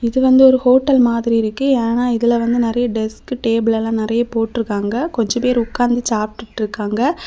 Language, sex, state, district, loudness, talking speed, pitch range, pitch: Tamil, female, Tamil Nadu, Kanyakumari, -16 LUFS, 175 wpm, 225-245 Hz, 235 Hz